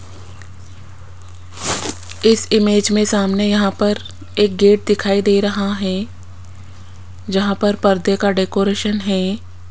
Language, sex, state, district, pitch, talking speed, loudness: Hindi, female, Rajasthan, Jaipur, 195 Hz, 110 wpm, -16 LUFS